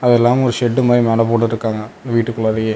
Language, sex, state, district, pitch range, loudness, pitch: Tamil, male, Tamil Nadu, Namakkal, 115-120 Hz, -16 LUFS, 115 Hz